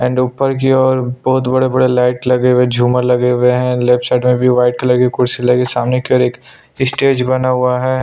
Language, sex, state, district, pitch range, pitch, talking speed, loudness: Hindi, male, Chhattisgarh, Sukma, 125-130 Hz, 125 Hz, 225 wpm, -13 LUFS